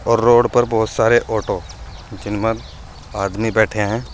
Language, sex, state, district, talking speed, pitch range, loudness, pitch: Hindi, male, Uttar Pradesh, Saharanpur, 145 wpm, 95-115 Hz, -17 LUFS, 110 Hz